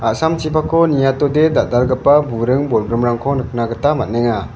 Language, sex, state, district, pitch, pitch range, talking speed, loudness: Garo, male, Meghalaya, West Garo Hills, 130 Hz, 120-150 Hz, 105 wpm, -15 LUFS